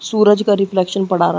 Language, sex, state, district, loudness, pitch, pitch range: Hindi, female, Chhattisgarh, Balrampur, -15 LUFS, 195 Hz, 185-210 Hz